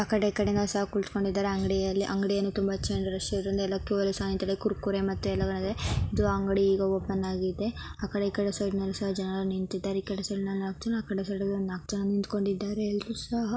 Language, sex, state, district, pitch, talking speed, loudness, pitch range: Kannada, female, Karnataka, Belgaum, 200 Hz, 195 wpm, -30 LUFS, 195-205 Hz